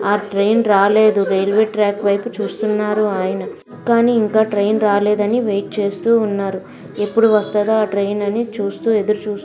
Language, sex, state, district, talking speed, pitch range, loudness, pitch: Telugu, female, Andhra Pradesh, Visakhapatnam, 160 wpm, 200-215 Hz, -17 LUFS, 210 Hz